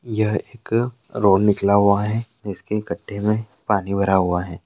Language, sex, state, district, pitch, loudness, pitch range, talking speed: Hindi, male, Bihar, Araria, 105 Hz, -20 LUFS, 100-110 Hz, 180 wpm